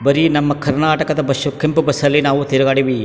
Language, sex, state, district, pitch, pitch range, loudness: Kannada, male, Karnataka, Chamarajanagar, 145 Hz, 140-155 Hz, -15 LUFS